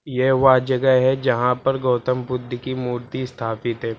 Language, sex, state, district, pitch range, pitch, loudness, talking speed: Hindi, male, Uttar Pradesh, Lucknow, 125-130 Hz, 130 Hz, -20 LUFS, 180 wpm